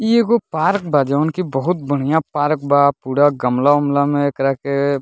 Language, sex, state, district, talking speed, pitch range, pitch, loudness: Bhojpuri, male, Bihar, Muzaffarpur, 205 wpm, 140-160 Hz, 145 Hz, -17 LUFS